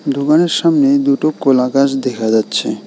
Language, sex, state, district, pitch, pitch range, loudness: Bengali, male, West Bengal, Alipurduar, 140 Hz, 130-150 Hz, -14 LUFS